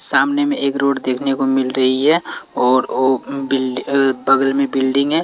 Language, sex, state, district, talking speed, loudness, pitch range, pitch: Hindi, male, Bihar, Patna, 185 wpm, -17 LUFS, 130-140 Hz, 135 Hz